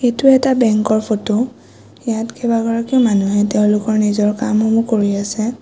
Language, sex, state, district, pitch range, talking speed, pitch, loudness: Assamese, female, Assam, Kamrup Metropolitan, 210-235 Hz, 140 wpm, 220 Hz, -16 LUFS